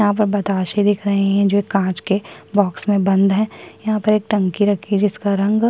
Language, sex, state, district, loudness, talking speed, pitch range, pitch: Hindi, female, Chhattisgarh, Kabirdham, -18 LUFS, 230 wpm, 195-210 Hz, 205 Hz